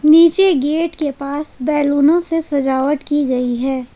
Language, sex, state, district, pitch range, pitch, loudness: Hindi, female, Jharkhand, Palamu, 270-315 Hz, 290 Hz, -15 LUFS